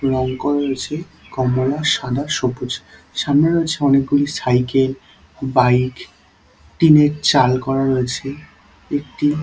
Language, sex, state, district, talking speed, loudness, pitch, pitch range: Bengali, male, West Bengal, Dakshin Dinajpur, 110 wpm, -18 LUFS, 135 Hz, 125-145 Hz